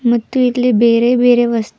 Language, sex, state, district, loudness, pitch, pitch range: Kannada, female, Karnataka, Bidar, -13 LUFS, 240 Hz, 235-245 Hz